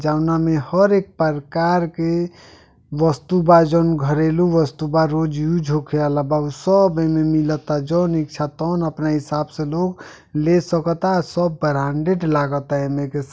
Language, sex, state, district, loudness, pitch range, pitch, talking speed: Bhojpuri, male, Uttar Pradesh, Deoria, -19 LUFS, 150-170 Hz, 160 Hz, 165 wpm